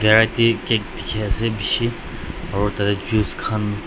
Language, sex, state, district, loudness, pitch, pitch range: Nagamese, male, Nagaland, Dimapur, -21 LUFS, 110 Hz, 105-115 Hz